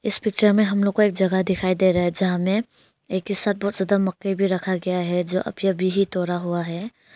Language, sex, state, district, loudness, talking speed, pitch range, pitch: Hindi, female, Arunachal Pradesh, Longding, -21 LUFS, 260 wpm, 185-200 Hz, 190 Hz